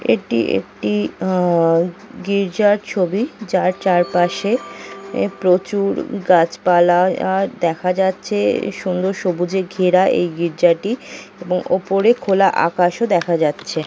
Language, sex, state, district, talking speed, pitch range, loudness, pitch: Bengali, female, West Bengal, North 24 Parganas, 95 wpm, 175-200 Hz, -17 LUFS, 185 Hz